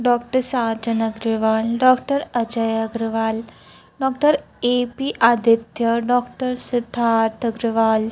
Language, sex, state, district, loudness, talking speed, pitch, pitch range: Hindi, female, Chhattisgarh, Raipur, -20 LUFS, 90 wpm, 235 Hz, 225-250 Hz